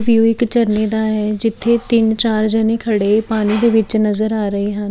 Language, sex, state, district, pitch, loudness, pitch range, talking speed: Punjabi, female, Chandigarh, Chandigarh, 220 Hz, -15 LUFS, 210-225 Hz, 210 wpm